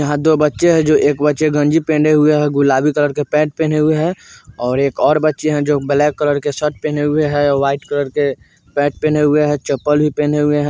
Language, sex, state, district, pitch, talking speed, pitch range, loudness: Bajjika, male, Bihar, Vaishali, 150 Hz, 245 wpm, 145-150 Hz, -15 LUFS